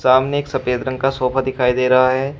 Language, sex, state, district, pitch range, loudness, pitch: Hindi, male, Uttar Pradesh, Shamli, 130-135 Hz, -17 LUFS, 130 Hz